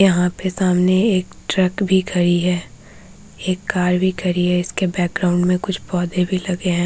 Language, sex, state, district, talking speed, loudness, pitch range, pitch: Hindi, female, Bihar, Vaishali, 200 wpm, -19 LUFS, 180-185 Hz, 180 Hz